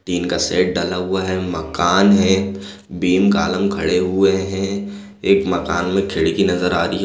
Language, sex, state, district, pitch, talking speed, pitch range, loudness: Hindi, male, Chhattisgarh, Sarguja, 95 Hz, 180 wpm, 90-100 Hz, -18 LUFS